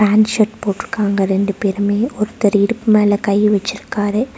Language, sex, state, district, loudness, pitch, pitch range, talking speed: Tamil, female, Tamil Nadu, Nilgiris, -16 LUFS, 205 Hz, 200-215 Hz, 125 wpm